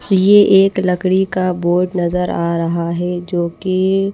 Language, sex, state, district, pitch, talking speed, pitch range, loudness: Hindi, female, Odisha, Malkangiri, 180 Hz, 145 wpm, 175-190 Hz, -15 LUFS